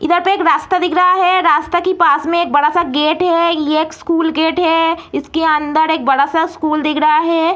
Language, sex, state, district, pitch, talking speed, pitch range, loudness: Hindi, female, Bihar, Gaya, 325 Hz, 220 wpm, 310-345 Hz, -14 LUFS